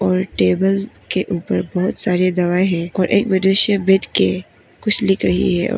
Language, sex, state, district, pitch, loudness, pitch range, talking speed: Hindi, female, Arunachal Pradesh, Papum Pare, 185 Hz, -16 LUFS, 180-195 Hz, 185 wpm